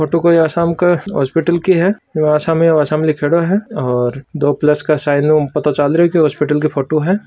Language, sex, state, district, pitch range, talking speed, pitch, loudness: Marwari, male, Rajasthan, Churu, 150-170 Hz, 200 wpm, 155 Hz, -14 LUFS